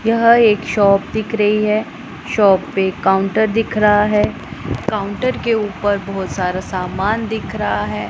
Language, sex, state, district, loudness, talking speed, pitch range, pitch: Hindi, male, Punjab, Pathankot, -16 LUFS, 155 wpm, 190-220 Hz, 210 Hz